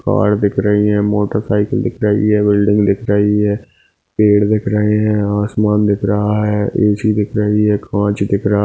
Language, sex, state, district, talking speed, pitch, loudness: Hindi, male, Goa, North and South Goa, 200 wpm, 105 Hz, -15 LUFS